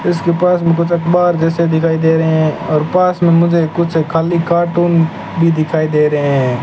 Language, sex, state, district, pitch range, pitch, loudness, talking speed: Hindi, male, Rajasthan, Bikaner, 160-170 Hz, 165 Hz, -13 LUFS, 200 wpm